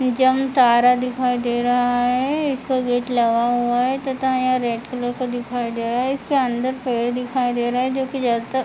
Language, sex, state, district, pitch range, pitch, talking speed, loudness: Hindi, female, Jharkhand, Jamtara, 245-260 Hz, 250 Hz, 175 wpm, -20 LUFS